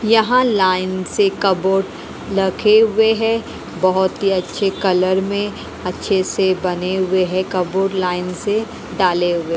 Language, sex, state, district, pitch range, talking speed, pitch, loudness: Hindi, female, Haryana, Rohtak, 185-205 Hz, 145 wpm, 190 Hz, -17 LUFS